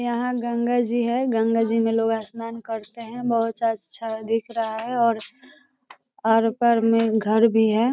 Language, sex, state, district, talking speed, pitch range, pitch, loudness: Hindi, female, Bihar, East Champaran, 180 wpm, 225-240 Hz, 230 Hz, -22 LUFS